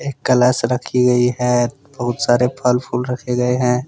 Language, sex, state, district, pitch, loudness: Hindi, male, Jharkhand, Deoghar, 125 Hz, -17 LUFS